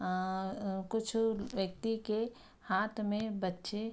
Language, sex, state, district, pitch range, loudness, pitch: Hindi, female, Bihar, Araria, 190-225 Hz, -36 LUFS, 210 Hz